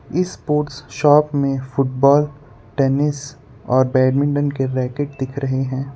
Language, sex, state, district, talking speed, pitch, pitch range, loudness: Hindi, male, Gujarat, Valsad, 130 wpm, 135 Hz, 130-145 Hz, -18 LUFS